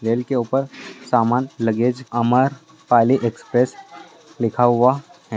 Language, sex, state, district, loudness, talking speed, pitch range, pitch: Hindi, male, Bihar, Purnia, -19 LUFS, 135 wpm, 120-135 Hz, 125 Hz